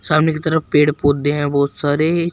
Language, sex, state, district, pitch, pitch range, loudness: Hindi, male, Uttar Pradesh, Shamli, 150 Hz, 145-160 Hz, -17 LUFS